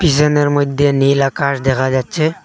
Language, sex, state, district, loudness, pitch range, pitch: Bengali, male, Assam, Hailakandi, -14 LUFS, 135-150 Hz, 140 Hz